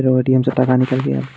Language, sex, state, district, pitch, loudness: Maithili, male, Bihar, Madhepura, 130 Hz, -16 LUFS